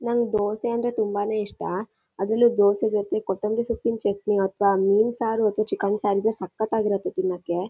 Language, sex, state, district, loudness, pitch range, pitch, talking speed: Kannada, female, Karnataka, Shimoga, -24 LUFS, 200-225 Hz, 210 Hz, 165 wpm